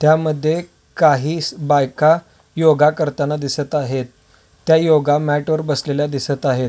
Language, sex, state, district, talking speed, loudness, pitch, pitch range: Marathi, male, Maharashtra, Solapur, 125 wpm, -17 LUFS, 150 Hz, 140-155 Hz